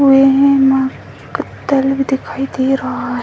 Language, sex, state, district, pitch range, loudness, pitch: Hindi, female, Bihar, Bhagalpur, 265-275 Hz, -14 LUFS, 270 Hz